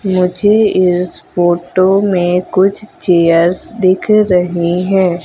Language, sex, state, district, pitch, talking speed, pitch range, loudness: Hindi, female, Madhya Pradesh, Umaria, 185 Hz, 105 wpm, 175-195 Hz, -12 LUFS